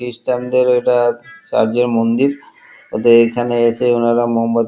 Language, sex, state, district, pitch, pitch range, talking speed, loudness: Bengali, male, West Bengal, Kolkata, 120 Hz, 115-125 Hz, 115 wpm, -15 LUFS